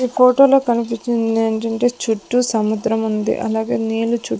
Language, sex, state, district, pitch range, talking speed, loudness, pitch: Telugu, female, Andhra Pradesh, Sri Satya Sai, 225-245 Hz, 110 wpm, -17 LUFS, 225 Hz